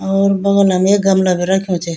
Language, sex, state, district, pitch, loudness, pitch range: Garhwali, female, Uttarakhand, Tehri Garhwal, 190 Hz, -14 LUFS, 185-195 Hz